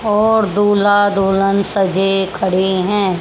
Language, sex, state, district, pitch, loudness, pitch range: Hindi, male, Haryana, Rohtak, 195 Hz, -14 LUFS, 190-205 Hz